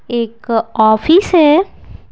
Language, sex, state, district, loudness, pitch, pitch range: Hindi, female, Bihar, Patna, -12 LUFS, 250 Hz, 225-325 Hz